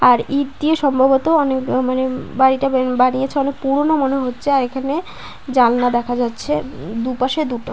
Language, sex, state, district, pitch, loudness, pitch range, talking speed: Bengali, female, West Bengal, Paschim Medinipur, 265 Hz, -17 LUFS, 250-280 Hz, 165 wpm